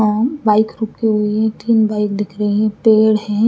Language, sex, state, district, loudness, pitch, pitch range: Hindi, female, Haryana, Rohtak, -16 LUFS, 215 Hz, 210-220 Hz